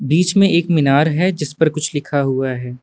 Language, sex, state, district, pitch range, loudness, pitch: Hindi, male, Uttar Pradesh, Lucknow, 140-170 Hz, -16 LUFS, 155 Hz